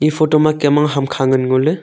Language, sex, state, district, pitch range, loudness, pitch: Wancho, male, Arunachal Pradesh, Longding, 135-155 Hz, -15 LUFS, 150 Hz